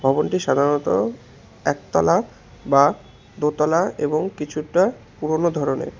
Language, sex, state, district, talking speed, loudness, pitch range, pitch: Bengali, male, West Bengal, Alipurduar, 90 wpm, -21 LUFS, 145-170 Hz, 150 Hz